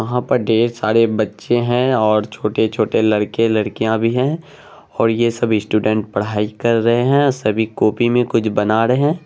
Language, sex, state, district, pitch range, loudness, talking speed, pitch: Hindi, male, Bihar, Araria, 110-120 Hz, -17 LUFS, 170 wpm, 115 Hz